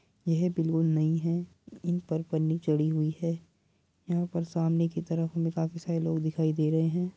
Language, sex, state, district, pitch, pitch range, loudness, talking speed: Hindi, female, Uttar Pradesh, Muzaffarnagar, 165 Hz, 160-170 Hz, -29 LUFS, 190 wpm